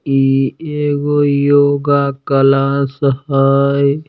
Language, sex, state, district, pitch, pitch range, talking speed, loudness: Maithili, male, Bihar, Samastipur, 140 Hz, 135-145 Hz, 75 wpm, -14 LUFS